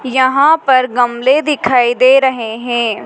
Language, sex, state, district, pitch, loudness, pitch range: Hindi, female, Madhya Pradesh, Dhar, 255 Hz, -12 LUFS, 240-270 Hz